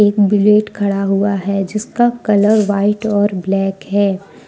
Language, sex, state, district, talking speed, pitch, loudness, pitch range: Hindi, female, Jharkhand, Deoghar, 145 wpm, 205 Hz, -15 LUFS, 195-210 Hz